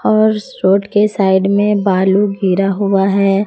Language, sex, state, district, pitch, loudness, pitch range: Hindi, female, Jharkhand, Palamu, 200 Hz, -13 LUFS, 195-205 Hz